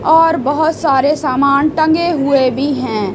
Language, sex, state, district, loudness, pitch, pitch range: Hindi, female, Chhattisgarh, Raipur, -13 LUFS, 285 Hz, 270-315 Hz